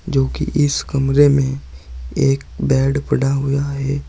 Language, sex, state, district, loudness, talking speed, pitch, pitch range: Hindi, male, Uttar Pradesh, Saharanpur, -17 LUFS, 145 wpm, 135 Hz, 135-140 Hz